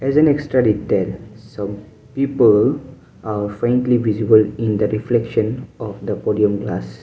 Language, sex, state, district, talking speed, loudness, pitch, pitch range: English, male, Mizoram, Aizawl, 145 wpm, -18 LUFS, 110 Hz, 105-125 Hz